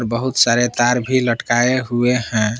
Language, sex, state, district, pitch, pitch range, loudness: Hindi, male, Jharkhand, Palamu, 120 Hz, 115-125 Hz, -17 LUFS